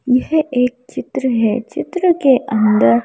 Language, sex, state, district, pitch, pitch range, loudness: Hindi, female, Madhya Pradesh, Bhopal, 250 Hz, 220-275 Hz, -16 LUFS